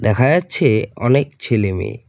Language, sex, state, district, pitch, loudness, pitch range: Bengali, male, West Bengal, Cooch Behar, 120 Hz, -17 LUFS, 110-140 Hz